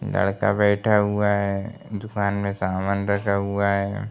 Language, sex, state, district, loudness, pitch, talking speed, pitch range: Hindi, male, Uttar Pradesh, Gorakhpur, -23 LUFS, 100 Hz, 145 wpm, 100-105 Hz